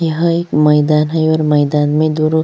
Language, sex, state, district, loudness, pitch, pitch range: Hindi, female, Chhattisgarh, Sukma, -13 LUFS, 155 Hz, 150-160 Hz